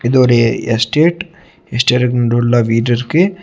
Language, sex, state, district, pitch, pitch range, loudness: Tamil, male, Tamil Nadu, Nilgiris, 120 Hz, 120-165 Hz, -13 LUFS